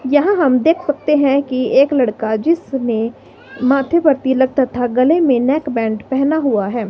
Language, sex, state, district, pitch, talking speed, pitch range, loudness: Hindi, female, Himachal Pradesh, Shimla, 265 Hz, 165 wpm, 245-290 Hz, -15 LUFS